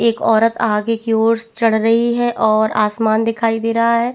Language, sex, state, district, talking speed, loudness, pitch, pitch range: Hindi, female, Chhattisgarh, Bastar, 205 wpm, -16 LUFS, 225 Hz, 220-230 Hz